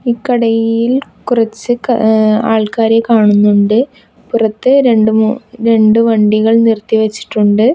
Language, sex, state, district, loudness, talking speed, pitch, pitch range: Malayalam, female, Kerala, Kasaragod, -11 LUFS, 95 wpm, 225 Hz, 220-235 Hz